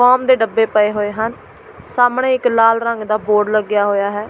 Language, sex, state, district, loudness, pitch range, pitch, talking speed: Punjabi, female, Delhi, New Delhi, -15 LUFS, 210-245 Hz, 220 Hz, 210 wpm